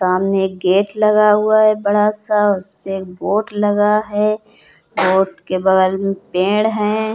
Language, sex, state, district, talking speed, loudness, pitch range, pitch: Hindi, female, Uttar Pradesh, Hamirpur, 160 wpm, -16 LUFS, 190-210 Hz, 205 Hz